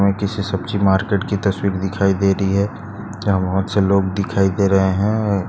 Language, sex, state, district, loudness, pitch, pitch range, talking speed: Hindi, male, Maharashtra, Chandrapur, -18 LUFS, 100 Hz, 95-100 Hz, 195 wpm